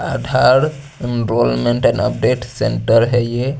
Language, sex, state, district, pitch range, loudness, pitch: Hindi, male, Chandigarh, Chandigarh, 115-130 Hz, -16 LUFS, 120 Hz